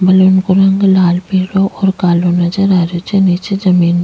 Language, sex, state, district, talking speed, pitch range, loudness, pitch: Rajasthani, female, Rajasthan, Nagaur, 205 wpm, 175-195 Hz, -12 LUFS, 185 Hz